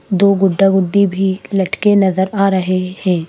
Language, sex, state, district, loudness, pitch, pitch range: Hindi, female, Madhya Pradesh, Bhopal, -14 LUFS, 195 Hz, 185-200 Hz